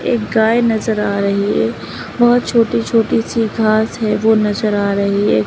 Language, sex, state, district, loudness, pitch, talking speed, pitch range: Hindi, female, Uttar Pradesh, Lalitpur, -15 LUFS, 220 Hz, 185 wpm, 210-230 Hz